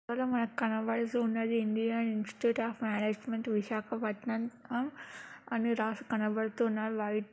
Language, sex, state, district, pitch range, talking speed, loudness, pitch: Telugu, female, Andhra Pradesh, Krishna, 220-235 Hz, 105 wpm, -33 LUFS, 225 Hz